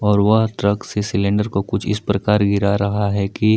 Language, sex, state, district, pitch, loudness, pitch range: Hindi, male, Jharkhand, Palamu, 100 Hz, -18 LUFS, 100-105 Hz